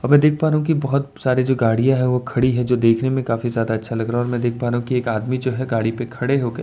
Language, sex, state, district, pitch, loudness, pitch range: Hindi, male, Delhi, New Delhi, 125 Hz, -19 LUFS, 115-130 Hz